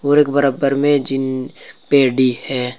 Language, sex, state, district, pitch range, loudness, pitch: Hindi, male, Uttar Pradesh, Saharanpur, 130-140 Hz, -16 LUFS, 135 Hz